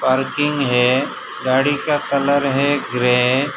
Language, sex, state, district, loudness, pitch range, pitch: Hindi, male, Gujarat, Valsad, -17 LUFS, 130-145 Hz, 135 Hz